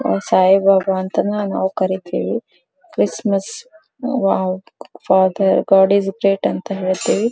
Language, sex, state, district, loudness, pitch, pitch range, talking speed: Kannada, female, Karnataka, Dharwad, -17 LUFS, 195 Hz, 190-205 Hz, 100 wpm